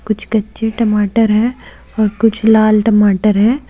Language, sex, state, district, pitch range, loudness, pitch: Hindi, female, Jharkhand, Deoghar, 210-225 Hz, -13 LUFS, 220 Hz